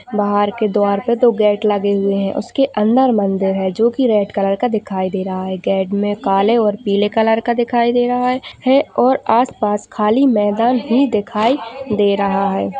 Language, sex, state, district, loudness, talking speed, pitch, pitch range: Hindi, female, Chhattisgarh, Sarguja, -16 LUFS, 200 wpm, 210 Hz, 200-240 Hz